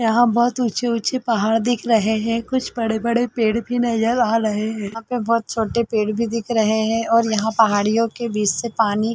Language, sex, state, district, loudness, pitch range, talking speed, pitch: Hindi, female, Chhattisgarh, Bilaspur, -19 LUFS, 220-235 Hz, 210 wpm, 230 Hz